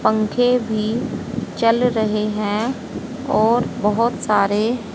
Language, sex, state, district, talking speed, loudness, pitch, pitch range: Hindi, female, Haryana, Rohtak, 95 wpm, -19 LUFS, 220 Hz, 215-240 Hz